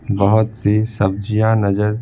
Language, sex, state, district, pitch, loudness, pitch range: Hindi, male, Bihar, Patna, 105 Hz, -17 LUFS, 100-110 Hz